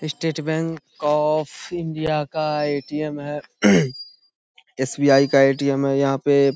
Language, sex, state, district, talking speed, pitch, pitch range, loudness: Hindi, male, Bihar, Saharsa, 120 wpm, 150 Hz, 140-155 Hz, -21 LUFS